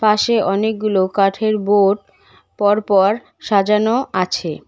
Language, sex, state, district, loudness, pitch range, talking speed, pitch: Bengali, female, West Bengal, Cooch Behar, -17 LUFS, 195-215 Hz, 90 wpm, 205 Hz